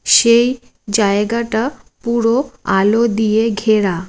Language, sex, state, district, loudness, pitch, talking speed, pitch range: Bengali, female, West Bengal, Jalpaiguri, -15 LUFS, 225 Hz, 90 wpm, 210-235 Hz